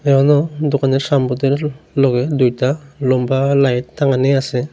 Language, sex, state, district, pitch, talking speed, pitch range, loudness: Bengali, male, Tripura, Unakoti, 135 Hz, 100 wpm, 130-145 Hz, -16 LUFS